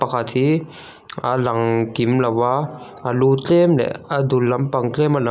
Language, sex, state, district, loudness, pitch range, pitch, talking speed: Mizo, male, Mizoram, Aizawl, -19 LUFS, 120-140 Hz, 130 Hz, 190 wpm